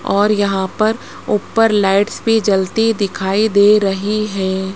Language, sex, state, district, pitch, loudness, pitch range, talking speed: Hindi, female, Rajasthan, Jaipur, 205 Hz, -15 LUFS, 195-215 Hz, 140 wpm